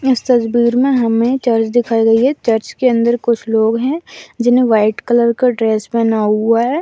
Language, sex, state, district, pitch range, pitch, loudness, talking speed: Hindi, female, Uttar Pradesh, Deoria, 225-250 Hz, 235 Hz, -14 LUFS, 200 wpm